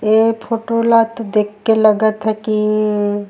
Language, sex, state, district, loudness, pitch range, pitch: Surgujia, female, Chhattisgarh, Sarguja, -15 LUFS, 210-225 Hz, 215 Hz